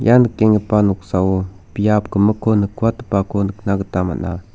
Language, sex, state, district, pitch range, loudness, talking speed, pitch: Garo, male, Meghalaya, South Garo Hills, 95-110 Hz, -17 LUFS, 120 wpm, 100 Hz